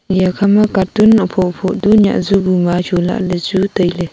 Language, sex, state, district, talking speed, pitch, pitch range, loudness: Wancho, female, Arunachal Pradesh, Longding, 205 wpm, 190 Hz, 180-200 Hz, -13 LUFS